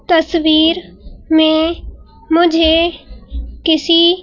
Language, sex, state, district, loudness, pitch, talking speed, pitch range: Hindi, female, Madhya Pradesh, Bhopal, -13 LUFS, 330 Hz, 55 wpm, 320-340 Hz